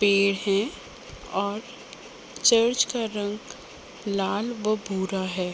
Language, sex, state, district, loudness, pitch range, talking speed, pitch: Hindi, female, Uttar Pradesh, Gorakhpur, -25 LUFS, 195-225 Hz, 110 wpm, 205 Hz